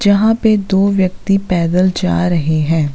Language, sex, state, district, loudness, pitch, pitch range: Hindi, female, Uttarakhand, Uttarkashi, -14 LUFS, 185 Hz, 170-200 Hz